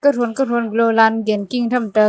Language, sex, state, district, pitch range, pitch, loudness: Wancho, female, Arunachal Pradesh, Longding, 220-245 Hz, 230 Hz, -17 LUFS